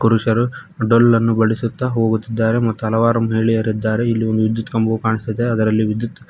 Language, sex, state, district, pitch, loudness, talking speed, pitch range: Kannada, male, Karnataka, Koppal, 115 Hz, -17 LUFS, 145 wpm, 110-115 Hz